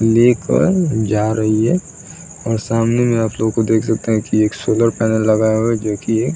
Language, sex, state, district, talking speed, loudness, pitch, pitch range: Hindi, male, Uttar Pradesh, Muzaffarnagar, 215 wpm, -16 LUFS, 115 Hz, 110-120 Hz